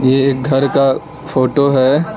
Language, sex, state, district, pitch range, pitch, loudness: Hindi, male, Arunachal Pradesh, Lower Dibang Valley, 130-145 Hz, 135 Hz, -14 LUFS